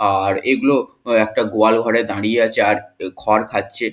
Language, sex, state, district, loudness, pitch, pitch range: Bengali, male, West Bengal, Kolkata, -17 LUFS, 110 Hz, 110-115 Hz